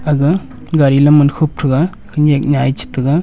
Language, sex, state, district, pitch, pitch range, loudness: Wancho, male, Arunachal Pradesh, Longding, 145 Hz, 140-155 Hz, -13 LUFS